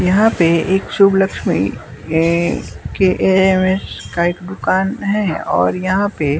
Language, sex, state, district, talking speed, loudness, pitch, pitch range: Hindi, male, Bihar, West Champaran, 140 wpm, -16 LUFS, 190 Hz, 170-195 Hz